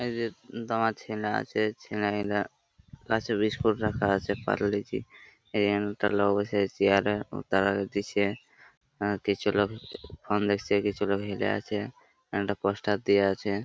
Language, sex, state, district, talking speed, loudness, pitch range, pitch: Bengali, male, West Bengal, Paschim Medinipur, 160 wpm, -28 LUFS, 100-105 Hz, 105 Hz